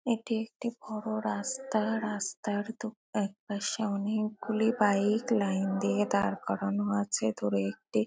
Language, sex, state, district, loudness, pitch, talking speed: Bengali, female, West Bengal, Kolkata, -31 LUFS, 205 Hz, 125 wpm